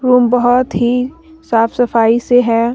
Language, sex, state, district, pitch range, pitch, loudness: Hindi, female, Jharkhand, Deoghar, 235-250 Hz, 245 Hz, -13 LUFS